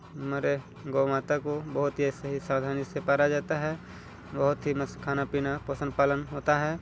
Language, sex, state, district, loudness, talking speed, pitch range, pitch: Hindi, male, Chhattisgarh, Balrampur, -29 LUFS, 185 wpm, 140-150 Hz, 140 Hz